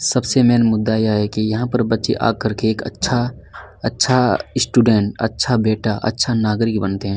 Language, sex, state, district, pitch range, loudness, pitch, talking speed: Hindi, male, Chhattisgarh, Kabirdham, 110-120 Hz, -18 LUFS, 110 Hz, 175 wpm